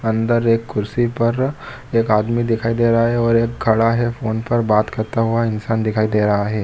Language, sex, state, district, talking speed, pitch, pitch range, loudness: Hindi, male, Jharkhand, Jamtara, 215 wpm, 115 Hz, 110-120 Hz, -18 LUFS